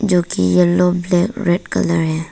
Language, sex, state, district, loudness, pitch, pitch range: Hindi, female, Arunachal Pradesh, Papum Pare, -16 LUFS, 175 Hz, 165-180 Hz